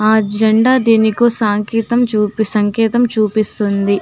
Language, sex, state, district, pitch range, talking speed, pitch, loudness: Telugu, female, Telangana, Nalgonda, 210-225 Hz, 90 wpm, 220 Hz, -14 LUFS